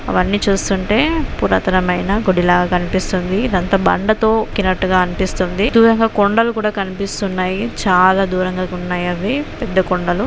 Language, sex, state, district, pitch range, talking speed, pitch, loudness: Telugu, female, Andhra Pradesh, Anantapur, 185-210 Hz, 105 wpm, 190 Hz, -16 LUFS